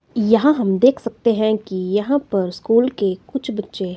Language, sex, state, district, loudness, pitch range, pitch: Hindi, female, Himachal Pradesh, Shimla, -18 LUFS, 195-245 Hz, 220 Hz